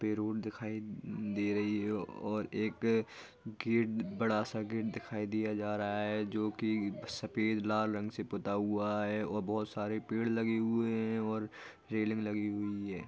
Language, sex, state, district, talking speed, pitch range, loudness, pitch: Hindi, male, Bihar, Jahanabad, 175 wpm, 105-110 Hz, -36 LUFS, 105 Hz